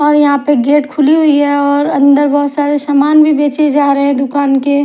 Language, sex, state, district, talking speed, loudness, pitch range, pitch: Hindi, female, Punjab, Fazilka, 250 wpm, -11 LUFS, 285-295 Hz, 290 Hz